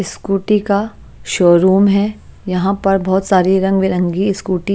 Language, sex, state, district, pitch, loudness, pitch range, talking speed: Hindi, female, Chandigarh, Chandigarh, 195 Hz, -15 LUFS, 185-200 Hz, 150 wpm